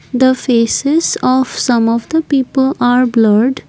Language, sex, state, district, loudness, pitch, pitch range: English, female, Assam, Kamrup Metropolitan, -13 LUFS, 255 Hz, 235-270 Hz